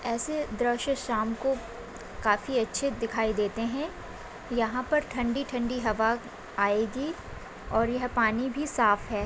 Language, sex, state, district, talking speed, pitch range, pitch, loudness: Hindi, female, Maharashtra, Aurangabad, 130 wpm, 225-260 Hz, 235 Hz, -29 LUFS